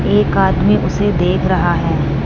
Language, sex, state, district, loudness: Hindi, female, Punjab, Fazilka, -14 LUFS